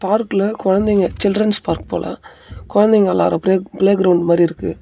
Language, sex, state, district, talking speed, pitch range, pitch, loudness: Tamil, male, Tamil Nadu, Namakkal, 150 wpm, 190-210 Hz, 195 Hz, -16 LUFS